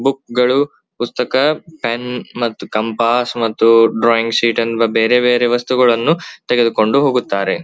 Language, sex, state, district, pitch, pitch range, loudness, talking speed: Kannada, male, Karnataka, Belgaum, 120 Hz, 115-125 Hz, -15 LUFS, 120 wpm